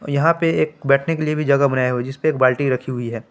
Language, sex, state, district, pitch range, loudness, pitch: Hindi, male, Jharkhand, Palamu, 130-155 Hz, -19 LUFS, 140 Hz